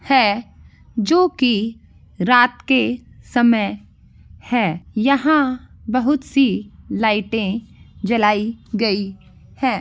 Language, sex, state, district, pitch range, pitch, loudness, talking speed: Hindi, female, Rajasthan, Nagaur, 215-260 Hz, 240 Hz, -19 LUFS, 85 wpm